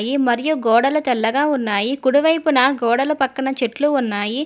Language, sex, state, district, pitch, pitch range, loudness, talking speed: Telugu, female, Telangana, Hyderabad, 265 Hz, 240-290 Hz, -18 LUFS, 120 wpm